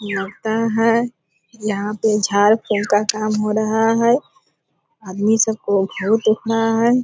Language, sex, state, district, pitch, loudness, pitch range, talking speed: Hindi, female, Bihar, Purnia, 215 Hz, -18 LUFS, 205-225 Hz, 130 wpm